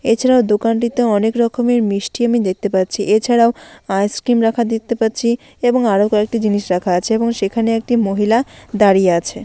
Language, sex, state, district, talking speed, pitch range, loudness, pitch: Bengali, female, West Bengal, Malda, 160 wpm, 205-235 Hz, -16 LUFS, 225 Hz